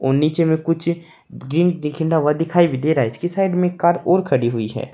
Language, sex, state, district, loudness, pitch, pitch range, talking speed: Hindi, male, Uttar Pradesh, Saharanpur, -18 LUFS, 160 Hz, 140-175 Hz, 230 wpm